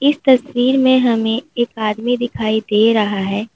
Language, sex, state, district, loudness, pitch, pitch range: Hindi, female, Uttar Pradesh, Lalitpur, -16 LUFS, 235 Hz, 215-255 Hz